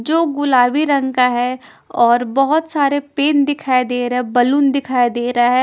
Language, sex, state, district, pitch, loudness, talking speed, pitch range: Hindi, female, Punjab, Kapurthala, 260 Hz, -16 LUFS, 190 wpm, 245-285 Hz